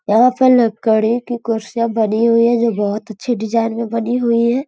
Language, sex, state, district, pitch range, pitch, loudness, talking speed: Hindi, female, Uttar Pradesh, Gorakhpur, 220-240 Hz, 230 Hz, -16 LUFS, 165 wpm